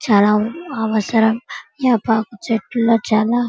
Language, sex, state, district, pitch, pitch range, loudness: Telugu, female, Andhra Pradesh, Guntur, 225 Hz, 220-240 Hz, -18 LUFS